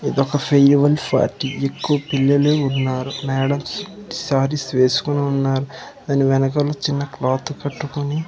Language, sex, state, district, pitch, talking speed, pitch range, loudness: Telugu, male, Andhra Pradesh, Manyam, 140 Hz, 100 wpm, 135-145 Hz, -19 LUFS